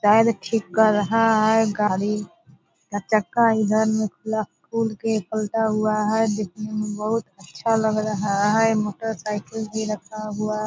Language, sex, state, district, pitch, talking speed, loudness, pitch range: Hindi, female, Bihar, Purnia, 215 Hz, 155 wpm, -22 LUFS, 210-220 Hz